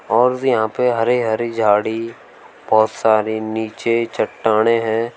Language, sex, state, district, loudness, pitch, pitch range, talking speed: Hindi, male, Uttar Pradesh, Shamli, -17 LUFS, 115 Hz, 110-115 Hz, 115 wpm